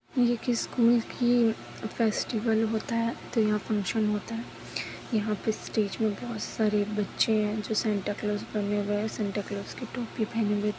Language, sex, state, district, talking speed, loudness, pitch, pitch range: Hindi, female, Chhattisgarh, Balrampur, 165 wpm, -29 LUFS, 220 Hz, 210-230 Hz